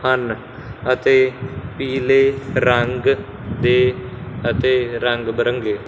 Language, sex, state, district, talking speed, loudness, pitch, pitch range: Punjabi, male, Punjab, Fazilka, 70 wpm, -18 LUFS, 125 Hz, 120-130 Hz